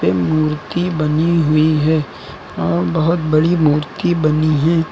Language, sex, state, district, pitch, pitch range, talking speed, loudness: Hindi, male, Uttar Pradesh, Lucknow, 155 Hz, 150-165 Hz, 120 wpm, -16 LUFS